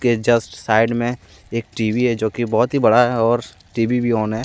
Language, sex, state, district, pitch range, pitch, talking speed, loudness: Hindi, male, Jharkhand, Deoghar, 110-120 Hz, 115 Hz, 230 wpm, -18 LUFS